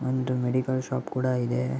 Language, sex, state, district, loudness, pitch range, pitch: Kannada, male, Karnataka, Mysore, -27 LUFS, 125-130 Hz, 130 Hz